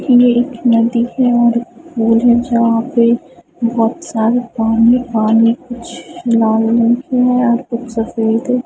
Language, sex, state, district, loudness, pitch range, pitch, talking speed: Hindi, female, Punjab, Fazilka, -14 LUFS, 230-245 Hz, 235 Hz, 95 wpm